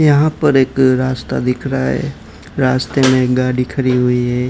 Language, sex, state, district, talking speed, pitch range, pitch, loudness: Hindi, male, Gujarat, Gandhinagar, 185 wpm, 125-135 Hz, 130 Hz, -15 LUFS